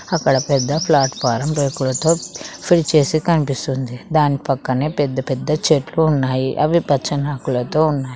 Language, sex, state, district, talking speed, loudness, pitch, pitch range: Telugu, female, Telangana, Mahabubabad, 125 wpm, -18 LUFS, 145 Hz, 130-155 Hz